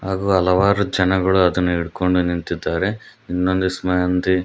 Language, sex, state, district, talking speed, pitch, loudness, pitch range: Kannada, male, Karnataka, Koppal, 110 wpm, 90 Hz, -19 LUFS, 90-95 Hz